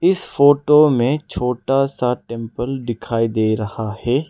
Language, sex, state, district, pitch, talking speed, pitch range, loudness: Hindi, male, Arunachal Pradesh, Lower Dibang Valley, 125 Hz, 140 wpm, 115-140 Hz, -18 LUFS